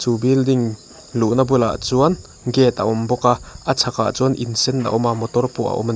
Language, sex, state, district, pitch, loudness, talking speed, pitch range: Mizo, male, Mizoram, Aizawl, 120 Hz, -18 LUFS, 240 wpm, 115-130 Hz